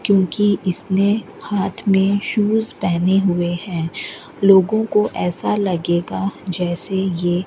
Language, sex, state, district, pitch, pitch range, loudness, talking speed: Hindi, female, Rajasthan, Bikaner, 195 Hz, 175-205 Hz, -18 LUFS, 120 wpm